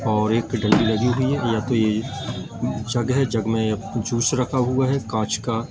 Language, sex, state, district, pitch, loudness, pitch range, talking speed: Hindi, male, Madhya Pradesh, Katni, 115 Hz, -22 LUFS, 110-130 Hz, 190 wpm